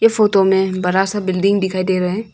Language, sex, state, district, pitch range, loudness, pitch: Hindi, female, Arunachal Pradesh, Longding, 185-205 Hz, -16 LUFS, 190 Hz